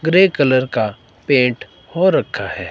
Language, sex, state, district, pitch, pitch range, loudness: Hindi, male, Himachal Pradesh, Shimla, 130 Hz, 115-145 Hz, -16 LUFS